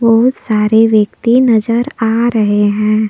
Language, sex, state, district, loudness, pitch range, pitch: Hindi, female, Jharkhand, Palamu, -12 LUFS, 215-235 Hz, 225 Hz